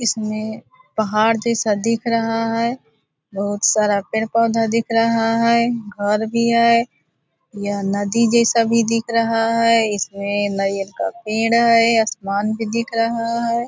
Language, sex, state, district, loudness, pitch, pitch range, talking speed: Hindi, female, Bihar, Purnia, -18 LUFS, 225 Hz, 205-230 Hz, 140 wpm